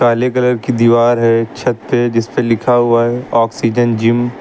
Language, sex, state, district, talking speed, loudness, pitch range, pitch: Hindi, male, Uttar Pradesh, Lucknow, 220 wpm, -13 LUFS, 115-125 Hz, 120 Hz